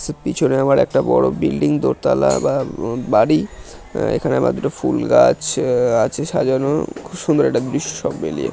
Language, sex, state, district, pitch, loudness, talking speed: Bengali, male, West Bengal, North 24 Parganas, 75 Hz, -17 LUFS, 125 wpm